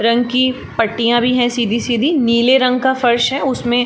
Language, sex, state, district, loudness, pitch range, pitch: Hindi, female, Uttar Pradesh, Varanasi, -15 LUFS, 235-255 Hz, 245 Hz